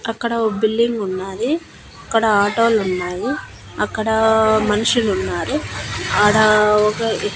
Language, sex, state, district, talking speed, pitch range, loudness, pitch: Telugu, female, Andhra Pradesh, Annamaya, 100 wpm, 210-225 Hz, -17 LUFS, 220 Hz